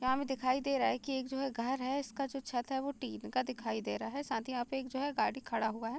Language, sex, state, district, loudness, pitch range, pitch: Hindi, female, Bihar, Gopalganj, -36 LUFS, 230-275 Hz, 260 Hz